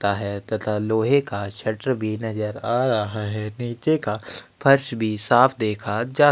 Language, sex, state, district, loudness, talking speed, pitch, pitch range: Hindi, male, Chhattisgarh, Sukma, -22 LUFS, 160 wpm, 110 Hz, 105-125 Hz